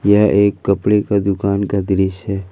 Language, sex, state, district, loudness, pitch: Hindi, male, Jharkhand, Ranchi, -16 LUFS, 100 Hz